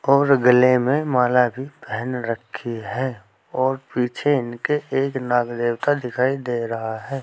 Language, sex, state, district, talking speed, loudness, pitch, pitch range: Hindi, male, Uttar Pradesh, Saharanpur, 150 wpm, -21 LUFS, 125 Hz, 120-135 Hz